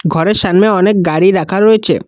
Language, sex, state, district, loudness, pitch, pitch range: Bengali, male, Assam, Kamrup Metropolitan, -11 LUFS, 190 Hz, 175-210 Hz